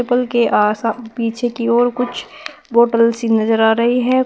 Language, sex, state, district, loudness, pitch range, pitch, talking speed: Hindi, female, Uttar Pradesh, Shamli, -16 LUFS, 230-245 Hz, 235 Hz, 185 wpm